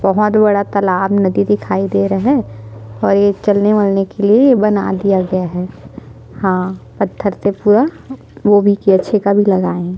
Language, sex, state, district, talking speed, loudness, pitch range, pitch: Hindi, female, Chhattisgarh, Sukma, 170 wpm, -14 LUFS, 180-205 Hz, 195 Hz